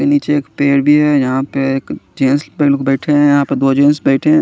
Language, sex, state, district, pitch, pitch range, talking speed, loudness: Hindi, male, Chandigarh, Chandigarh, 140 Hz, 135-145 Hz, 245 wpm, -13 LUFS